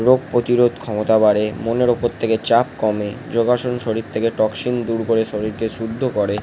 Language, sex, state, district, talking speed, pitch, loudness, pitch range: Bengali, male, West Bengal, Jalpaiguri, 170 wpm, 115 Hz, -19 LUFS, 110-120 Hz